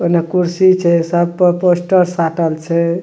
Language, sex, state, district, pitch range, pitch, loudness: Maithili, male, Bihar, Madhepura, 170-180 Hz, 175 Hz, -14 LUFS